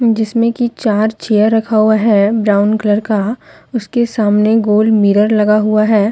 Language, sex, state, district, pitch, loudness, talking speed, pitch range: Hindi, female, Jharkhand, Deoghar, 215 Hz, -13 LUFS, 165 wpm, 210-225 Hz